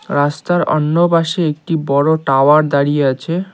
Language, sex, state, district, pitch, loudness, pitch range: Bengali, male, West Bengal, Cooch Behar, 155 Hz, -14 LUFS, 145-170 Hz